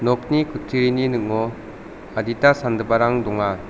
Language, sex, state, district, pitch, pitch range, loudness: Garo, male, Meghalaya, South Garo Hills, 115 Hz, 110-125 Hz, -20 LUFS